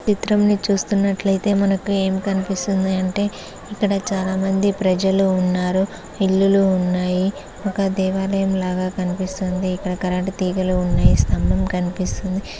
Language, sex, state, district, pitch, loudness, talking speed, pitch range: Telugu, male, Andhra Pradesh, Srikakulam, 190 Hz, -20 LUFS, 105 wpm, 185-195 Hz